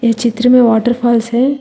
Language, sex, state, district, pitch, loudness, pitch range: Hindi, female, Telangana, Hyderabad, 240 Hz, -12 LUFS, 230-250 Hz